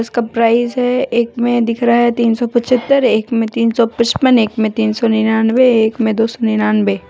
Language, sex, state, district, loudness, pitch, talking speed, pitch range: Hindi, female, Jharkhand, Deoghar, -14 LUFS, 230 Hz, 220 wpm, 225-240 Hz